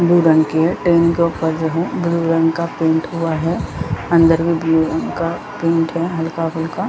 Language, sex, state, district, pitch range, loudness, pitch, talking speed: Hindi, female, Jharkhand, Jamtara, 160-170 Hz, -17 LUFS, 165 Hz, 175 wpm